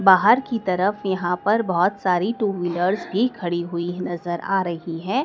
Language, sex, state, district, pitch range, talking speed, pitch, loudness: Hindi, female, Madhya Pradesh, Dhar, 175-205 Hz, 180 wpm, 185 Hz, -22 LUFS